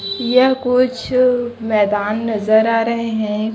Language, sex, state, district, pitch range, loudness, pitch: Hindi, female, Chhattisgarh, Raipur, 215-250 Hz, -16 LUFS, 230 Hz